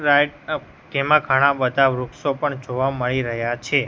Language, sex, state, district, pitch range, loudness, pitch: Gujarati, male, Gujarat, Gandhinagar, 130-145 Hz, -20 LUFS, 140 Hz